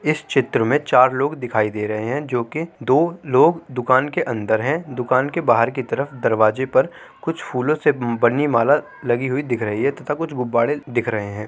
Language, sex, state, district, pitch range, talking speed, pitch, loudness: Hindi, male, Uttar Pradesh, Jyotiba Phule Nagar, 120-145 Hz, 205 wpm, 130 Hz, -20 LUFS